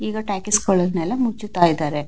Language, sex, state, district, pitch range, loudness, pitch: Kannada, female, Karnataka, Mysore, 170-215 Hz, -20 LUFS, 195 Hz